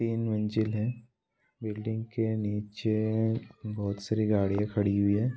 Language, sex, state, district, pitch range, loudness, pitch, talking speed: Hindi, male, Bihar, Bhagalpur, 105-110 Hz, -30 LUFS, 110 Hz, 135 wpm